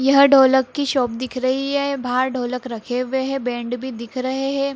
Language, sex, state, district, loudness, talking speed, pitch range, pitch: Hindi, female, Bihar, Saharsa, -20 LUFS, 215 wpm, 250-275 Hz, 260 Hz